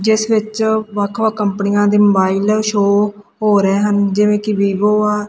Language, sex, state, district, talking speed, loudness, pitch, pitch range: Punjabi, female, Punjab, Kapurthala, 180 wpm, -15 LUFS, 210 Hz, 200-215 Hz